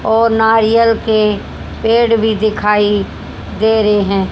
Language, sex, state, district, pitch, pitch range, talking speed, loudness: Hindi, female, Haryana, Jhajjar, 220 Hz, 210-225 Hz, 125 wpm, -13 LUFS